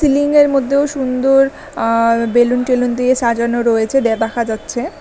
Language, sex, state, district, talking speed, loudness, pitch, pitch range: Bengali, female, West Bengal, Alipurduar, 145 wpm, -15 LUFS, 250 Hz, 235-270 Hz